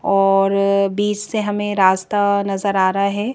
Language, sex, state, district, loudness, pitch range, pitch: Hindi, female, Madhya Pradesh, Bhopal, -17 LUFS, 195-205 Hz, 200 Hz